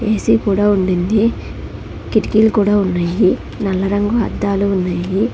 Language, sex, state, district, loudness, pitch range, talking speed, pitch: Telugu, female, Telangana, Hyderabad, -16 LUFS, 190-215 Hz, 110 wpm, 200 Hz